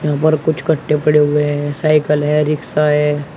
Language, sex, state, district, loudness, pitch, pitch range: Hindi, male, Uttar Pradesh, Shamli, -15 LUFS, 150 Hz, 150-155 Hz